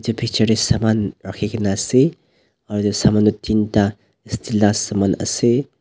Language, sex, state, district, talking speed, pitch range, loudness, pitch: Nagamese, male, Nagaland, Dimapur, 145 wpm, 105-115 Hz, -18 LUFS, 110 Hz